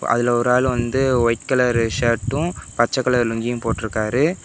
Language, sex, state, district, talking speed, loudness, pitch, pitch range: Tamil, male, Tamil Nadu, Namakkal, 150 wpm, -19 LUFS, 120 Hz, 115-130 Hz